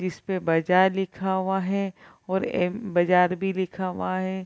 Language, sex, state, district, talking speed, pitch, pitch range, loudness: Hindi, female, Bihar, Kishanganj, 175 wpm, 185 Hz, 180-190 Hz, -25 LUFS